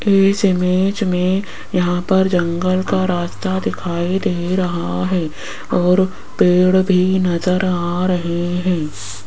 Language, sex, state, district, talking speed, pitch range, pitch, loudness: Hindi, female, Rajasthan, Jaipur, 125 wpm, 175-185 Hz, 180 Hz, -17 LUFS